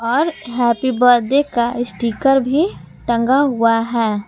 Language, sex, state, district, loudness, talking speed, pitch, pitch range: Hindi, female, Jharkhand, Palamu, -16 LUFS, 125 wpm, 245 Hz, 235-270 Hz